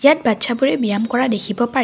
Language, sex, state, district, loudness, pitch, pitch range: Assamese, female, Assam, Kamrup Metropolitan, -17 LUFS, 240 Hz, 225-260 Hz